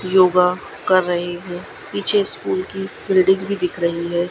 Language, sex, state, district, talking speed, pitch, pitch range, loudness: Hindi, female, Gujarat, Gandhinagar, 165 wpm, 185 Hz, 175-190 Hz, -19 LUFS